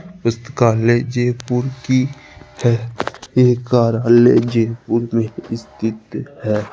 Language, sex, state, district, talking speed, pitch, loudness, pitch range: Hindi, male, Rajasthan, Jaipur, 90 wpm, 120 Hz, -17 LUFS, 115-125 Hz